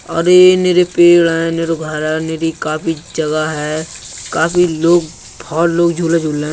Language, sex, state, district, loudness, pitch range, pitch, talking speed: Bundeli, male, Uttar Pradesh, Budaun, -14 LUFS, 155-170 Hz, 165 Hz, 185 wpm